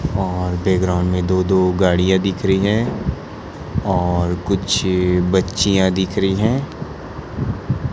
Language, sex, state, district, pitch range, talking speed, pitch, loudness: Hindi, male, Chhattisgarh, Raipur, 90-95 Hz, 115 wpm, 95 Hz, -18 LUFS